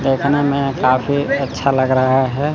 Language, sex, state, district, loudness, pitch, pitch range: Hindi, male, Chandigarh, Chandigarh, -16 LUFS, 135 Hz, 130-140 Hz